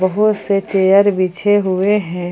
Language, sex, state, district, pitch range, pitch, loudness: Hindi, female, Jharkhand, Palamu, 185-205 Hz, 195 Hz, -15 LUFS